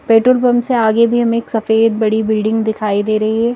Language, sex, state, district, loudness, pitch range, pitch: Hindi, female, Madhya Pradesh, Bhopal, -14 LUFS, 220-235 Hz, 225 Hz